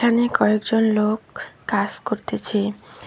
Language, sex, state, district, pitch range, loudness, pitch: Bengali, female, West Bengal, Alipurduar, 210-235 Hz, -21 LUFS, 215 Hz